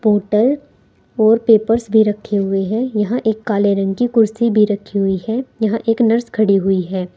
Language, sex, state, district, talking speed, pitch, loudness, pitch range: Hindi, female, Uttar Pradesh, Saharanpur, 190 wpm, 215 Hz, -16 LUFS, 200-230 Hz